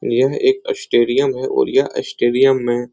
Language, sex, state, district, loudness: Hindi, male, Uttar Pradesh, Etah, -17 LUFS